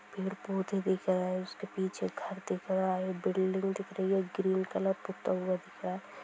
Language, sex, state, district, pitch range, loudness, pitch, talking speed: Hindi, female, Bihar, Sitamarhi, 185-195 Hz, -34 LUFS, 190 Hz, 210 wpm